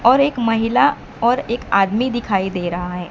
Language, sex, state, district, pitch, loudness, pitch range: Hindi, female, Maharashtra, Mumbai Suburban, 225 Hz, -18 LUFS, 190-240 Hz